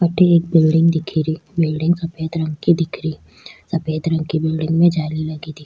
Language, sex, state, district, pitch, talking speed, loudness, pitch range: Rajasthani, female, Rajasthan, Churu, 160 Hz, 210 wpm, -18 LUFS, 155-165 Hz